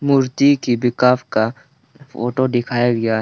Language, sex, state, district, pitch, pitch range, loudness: Hindi, male, Arunachal Pradesh, Lower Dibang Valley, 125 Hz, 120-135 Hz, -17 LUFS